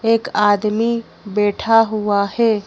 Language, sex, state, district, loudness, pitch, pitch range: Hindi, female, Madhya Pradesh, Bhopal, -17 LUFS, 215 Hz, 205-230 Hz